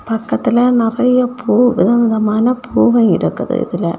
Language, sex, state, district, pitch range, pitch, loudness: Tamil, female, Tamil Nadu, Kanyakumari, 225-245 Hz, 240 Hz, -14 LUFS